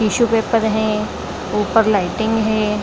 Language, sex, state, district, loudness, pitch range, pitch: Hindi, female, Bihar, Lakhisarai, -18 LUFS, 210-225 Hz, 220 Hz